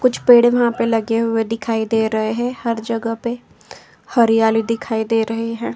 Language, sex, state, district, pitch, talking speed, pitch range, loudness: Hindi, female, Uttar Pradesh, Jyotiba Phule Nagar, 230 Hz, 185 wpm, 225-235 Hz, -18 LUFS